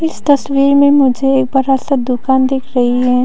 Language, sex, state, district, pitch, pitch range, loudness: Hindi, female, Arunachal Pradesh, Papum Pare, 270 Hz, 255-280 Hz, -12 LUFS